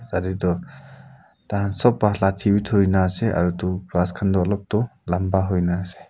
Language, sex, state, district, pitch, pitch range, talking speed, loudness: Nagamese, male, Nagaland, Kohima, 95 Hz, 90-100 Hz, 215 wpm, -22 LUFS